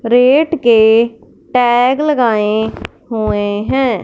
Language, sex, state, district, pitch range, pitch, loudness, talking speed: Hindi, male, Punjab, Fazilka, 220-255 Hz, 235 Hz, -13 LUFS, 90 wpm